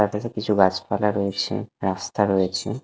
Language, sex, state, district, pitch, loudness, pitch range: Bengali, male, Odisha, Khordha, 100 Hz, -23 LUFS, 95-105 Hz